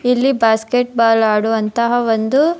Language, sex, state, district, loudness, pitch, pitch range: Kannada, female, Karnataka, Dharwad, -15 LUFS, 235 Hz, 225-250 Hz